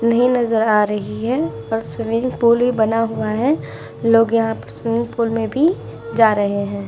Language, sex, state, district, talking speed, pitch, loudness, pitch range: Hindi, female, Uttar Pradesh, Muzaffarnagar, 185 wpm, 230 Hz, -18 LUFS, 220-235 Hz